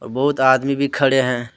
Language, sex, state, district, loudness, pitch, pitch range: Hindi, male, Jharkhand, Deoghar, -17 LUFS, 135 Hz, 125-140 Hz